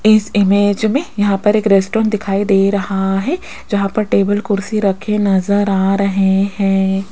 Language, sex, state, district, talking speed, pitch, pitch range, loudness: Hindi, female, Rajasthan, Jaipur, 170 wpm, 200 Hz, 195-210 Hz, -15 LUFS